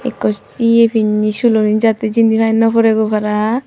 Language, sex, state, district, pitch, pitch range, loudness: Chakma, female, Tripura, Unakoti, 225 Hz, 215-230 Hz, -13 LUFS